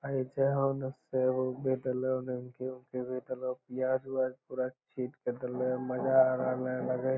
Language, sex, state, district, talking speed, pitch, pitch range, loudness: Magahi, male, Bihar, Lakhisarai, 140 wpm, 130 Hz, 125-130 Hz, -33 LUFS